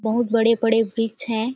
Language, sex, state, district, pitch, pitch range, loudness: Hindi, female, Chhattisgarh, Sarguja, 225 Hz, 225-235 Hz, -20 LUFS